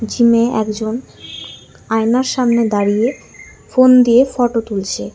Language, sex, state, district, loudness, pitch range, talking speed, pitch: Bengali, female, West Bengal, Alipurduar, -14 LUFS, 220-245 Hz, 105 wpm, 230 Hz